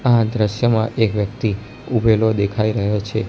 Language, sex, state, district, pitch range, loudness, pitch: Gujarati, male, Gujarat, Gandhinagar, 105-115 Hz, -18 LUFS, 110 Hz